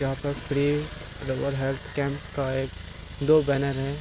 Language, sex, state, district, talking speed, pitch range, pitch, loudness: Hindi, male, Bihar, Darbhanga, 165 wpm, 135-145 Hz, 140 Hz, -27 LUFS